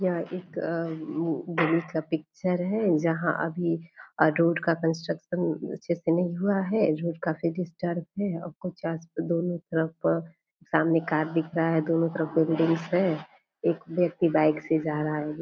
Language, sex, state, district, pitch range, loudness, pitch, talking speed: Hindi, female, Bihar, Purnia, 160-175 Hz, -27 LUFS, 165 Hz, 245 wpm